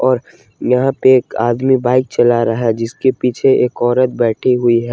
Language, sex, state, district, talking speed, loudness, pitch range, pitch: Hindi, male, Jharkhand, Ranchi, 205 wpm, -14 LUFS, 120-130 Hz, 125 Hz